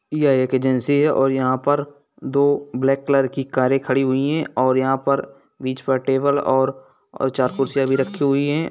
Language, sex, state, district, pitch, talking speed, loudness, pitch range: Hindi, male, Bihar, East Champaran, 135 Hz, 185 wpm, -20 LUFS, 130-140 Hz